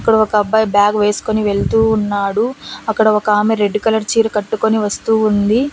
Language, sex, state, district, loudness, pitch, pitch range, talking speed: Telugu, female, Andhra Pradesh, Annamaya, -15 LUFS, 215 Hz, 210-220 Hz, 155 wpm